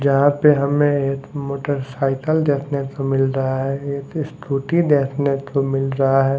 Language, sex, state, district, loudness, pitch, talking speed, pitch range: Hindi, male, Maharashtra, Mumbai Suburban, -19 LUFS, 140 Hz, 160 wpm, 135-145 Hz